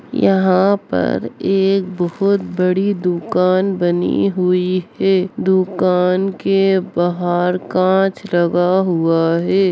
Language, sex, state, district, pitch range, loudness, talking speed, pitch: Hindi, female, Bihar, Darbhanga, 180-195 Hz, -16 LUFS, 100 wpm, 185 Hz